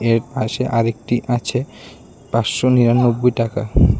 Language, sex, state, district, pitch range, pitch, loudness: Bengali, male, Tripura, West Tripura, 115-125 Hz, 120 Hz, -18 LUFS